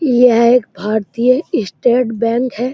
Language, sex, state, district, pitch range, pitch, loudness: Hindi, male, Uttar Pradesh, Muzaffarnagar, 230-250 Hz, 245 Hz, -14 LUFS